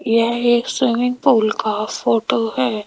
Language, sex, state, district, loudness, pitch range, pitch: Hindi, female, Rajasthan, Jaipur, -18 LUFS, 220-245 Hz, 235 Hz